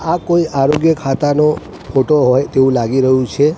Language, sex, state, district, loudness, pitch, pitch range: Gujarati, male, Gujarat, Gandhinagar, -14 LUFS, 140 Hz, 130-150 Hz